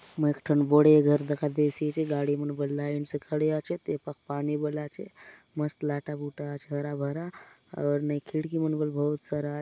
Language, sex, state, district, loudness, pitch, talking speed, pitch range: Halbi, male, Chhattisgarh, Bastar, -28 LUFS, 145 Hz, 225 wpm, 145-150 Hz